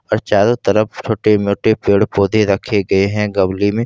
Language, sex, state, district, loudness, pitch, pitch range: Hindi, male, Jharkhand, Ranchi, -15 LUFS, 100 Hz, 100-110 Hz